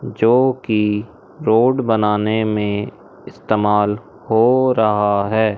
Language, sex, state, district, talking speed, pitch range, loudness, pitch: Hindi, male, Madhya Pradesh, Umaria, 95 wpm, 105-115 Hz, -17 LUFS, 110 Hz